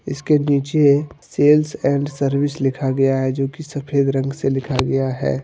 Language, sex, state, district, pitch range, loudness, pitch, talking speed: Hindi, male, Jharkhand, Deoghar, 135-145 Hz, -18 LUFS, 140 Hz, 175 wpm